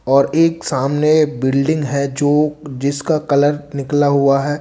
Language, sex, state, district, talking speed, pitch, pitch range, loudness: Hindi, male, Bihar, Katihar, 145 wpm, 145 Hz, 140-150 Hz, -16 LUFS